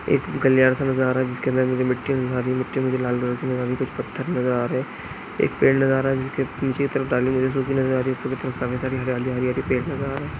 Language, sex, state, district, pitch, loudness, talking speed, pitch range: Hindi, male, Andhra Pradesh, Chittoor, 130 Hz, -23 LUFS, 330 wpm, 125-135 Hz